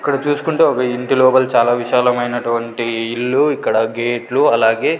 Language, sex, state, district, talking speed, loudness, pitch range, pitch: Telugu, male, Andhra Pradesh, Sri Satya Sai, 130 wpm, -16 LUFS, 115-130 Hz, 120 Hz